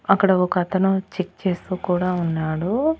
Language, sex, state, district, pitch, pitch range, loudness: Telugu, female, Andhra Pradesh, Annamaya, 185 Hz, 180-195 Hz, -21 LUFS